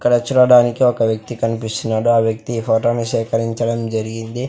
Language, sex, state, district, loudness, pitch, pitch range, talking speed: Telugu, male, Andhra Pradesh, Sri Satya Sai, -17 LUFS, 115 Hz, 115-120 Hz, 160 wpm